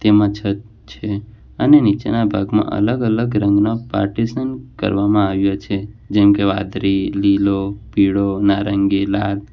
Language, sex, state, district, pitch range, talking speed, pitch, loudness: Gujarati, male, Gujarat, Valsad, 100-105 Hz, 125 wpm, 100 Hz, -17 LUFS